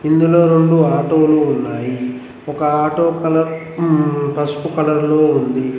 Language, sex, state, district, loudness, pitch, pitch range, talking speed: Telugu, male, Telangana, Mahabubabad, -15 LUFS, 155 Hz, 145-160 Hz, 115 wpm